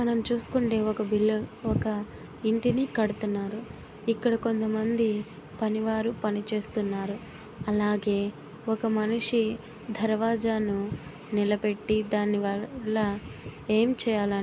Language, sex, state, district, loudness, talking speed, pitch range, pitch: Telugu, female, Andhra Pradesh, Guntur, -28 LUFS, 85 wpm, 210-225 Hz, 215 Hz